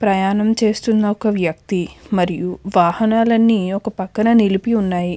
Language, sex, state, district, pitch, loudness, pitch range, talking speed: Telugu, female, Andhra Pradesh, Anantapur, 200 Hz, -17 LUFS, 185-220 Hz, 115 wpm